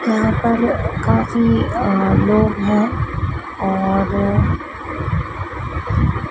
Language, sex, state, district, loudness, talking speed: Hindi, female, Madhya Pradesh, Dhar, -18 LUFS, 65 wpm